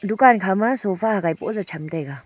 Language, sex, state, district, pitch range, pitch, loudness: Wancho, female, Arunachal Pradesh, Longding, 160-220 Hz, 195 Hz, -20 LUFS